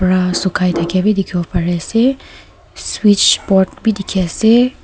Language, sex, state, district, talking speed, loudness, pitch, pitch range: Nagamese, female, Nagaland, Kohima, 150 wpm, -14 LUFS, 190 Hz, 180-215 Hz